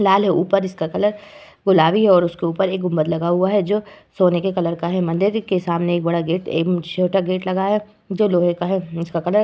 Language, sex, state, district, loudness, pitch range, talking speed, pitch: Hindi, female, Uttar Pradesh, Varanasi, -19 LUFS, 170-195 Hz, 250 wpm, 185 Hz